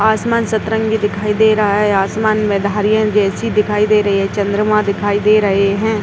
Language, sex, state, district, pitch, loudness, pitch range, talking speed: Hindi, female, Uttar Pradesh, Etah, 210 Hz, -14 LUFS, 205-215 Hz, 190 wpm